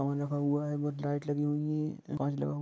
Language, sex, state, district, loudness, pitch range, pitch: Hindi, male, Jharkhand, Sahebganj, -33 LUFS, 145-150 Hz, 145 Hz